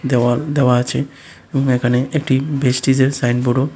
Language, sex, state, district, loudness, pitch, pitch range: Bengali, male, Tripura, West Tripura, -17 LUFS, 130 Hz, 125-140 Hz